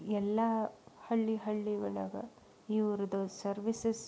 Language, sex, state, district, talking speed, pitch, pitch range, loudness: Kannada, female, Karnataka, Belgaum, 90 wpm, 215 Hz, 200-220 Hz, -35 LUFS